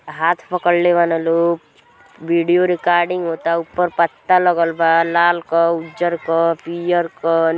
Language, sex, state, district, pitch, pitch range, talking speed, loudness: Bhojpuri, female, Uttar Pradesh, Gorakhpur, 170 Hz, 165-175 Hz, 135 wpm, -17 LUFS